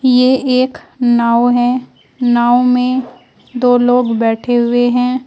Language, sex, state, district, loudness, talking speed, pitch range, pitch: Hindi, female, Uttar Pradesh, Shamli, -13 LUFS, 125 wpm, 240-255 Hz, 245 Hz